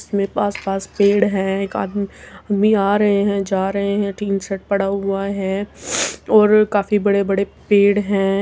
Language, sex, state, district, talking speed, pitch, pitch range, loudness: Hindi, female, Uttar Pradesh, Muzaffarnagar, 155 wpm, 200 Hz, 195-205 Hz, -18 LUFS